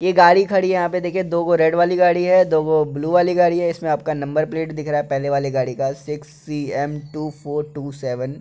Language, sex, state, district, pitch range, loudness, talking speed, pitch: Maithili, male, Bihar, Begusarai, 145-175 Hz, -19 LUFS, 270 wpm, 155 Hz